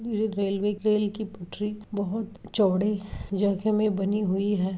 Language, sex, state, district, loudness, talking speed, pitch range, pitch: Hindi, male, Uttar Pradesh, Etah, -27 LUFS, 150 wpm, 200-210 Hz, 205 Hz